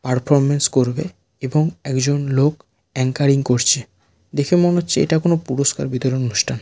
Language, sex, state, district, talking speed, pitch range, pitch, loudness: Bengali, male, West Bengal, Malda, 135 wpm, 125-150 Hz, 135 Hz, -18 LUFS